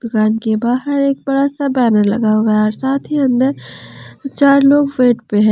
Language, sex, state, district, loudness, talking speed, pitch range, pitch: Hindi, female, Jharkhand, Palamu, -14 LUFS, 195 wpm, 220-275 Hz, 255 Hz